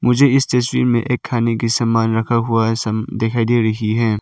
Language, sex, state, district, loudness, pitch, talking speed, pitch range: Hindi, male, Arunachal Pradesh, Lower Dibang Valley, -17 LUFS, 115 Hz, 225 wpm, 115-120 Hz